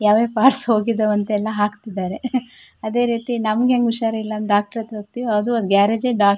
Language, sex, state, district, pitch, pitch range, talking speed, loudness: Kannada, female, Karnataka, Shimoga, 220 Hz, 210-235 Hz, 150 wpm, -19 LUFS